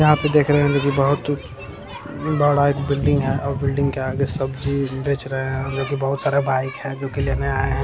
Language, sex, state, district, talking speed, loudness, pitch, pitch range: Hindi, male, Bihar, Jamui, 215 wpm, -21 LUFS, 140 Hz, 135-145 Hz